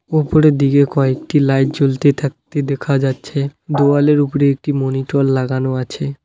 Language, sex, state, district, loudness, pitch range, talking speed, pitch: Bengali, male, West Bengal, Alipurduar, -16 LUFS, 135-145 Hz, 135 wpm, 140 Hz